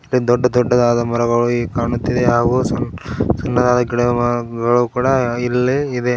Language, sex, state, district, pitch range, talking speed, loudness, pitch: Kannada, male, Karnataka, Koppal, 120-125 Hz, 125 wpm, -17 LUFS, 120 Hz